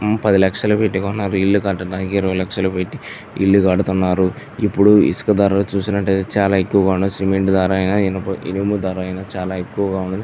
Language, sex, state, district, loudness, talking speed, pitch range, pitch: Telugu, male, Andhra Pradesh, Chittoor, -17 LUFS, 150 wpm, 95-100 Hz, 95 Hz